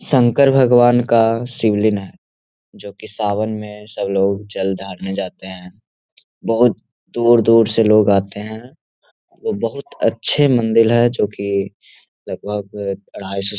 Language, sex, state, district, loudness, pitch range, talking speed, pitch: Hindi, male, Bihar, Gaya, -17 LUFS, 100-120 Hz, 135 wpm, 110 Hz